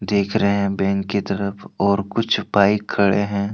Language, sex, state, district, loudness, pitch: Hindi, male, Jharkhand, Deoghar, -20 LUFS, 100 Hz